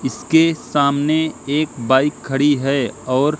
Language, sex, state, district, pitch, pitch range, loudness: Hindi, male, Madhya Pradesh, Katni, 145 Hz, 135-150 Hz, -17 LUFS